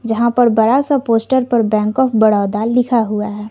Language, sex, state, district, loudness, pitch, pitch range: Hindi, female, Bihar, West Champaran, -14 LUFS, 225 Hz, 215-245 Hz